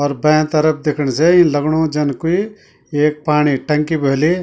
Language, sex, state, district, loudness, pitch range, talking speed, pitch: Garhwali, male, Uttarakhand, Tehri Garhwal, -15 LUFS, 145-160 Hz, 175 wpm, 150 Hz